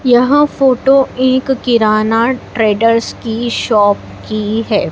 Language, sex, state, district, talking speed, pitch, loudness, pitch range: Hindi, female, Madhya Pradesh, Dhar, 110 wpm, 230 Hz, -13 LUFS, 220-260 Hz